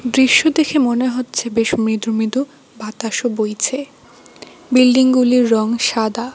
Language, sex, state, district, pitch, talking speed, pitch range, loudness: Bengali, female, West Bengal, Cooch Behar, 245 Hz, 125 wpm, 225-260 Hz, -16 LUFS